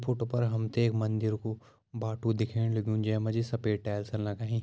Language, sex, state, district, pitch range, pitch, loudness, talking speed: Garhwali, male, Uttarakhand, Uttarkashi, 110-115 Hz, 110 Hz, -31 LUFS, 205 wpm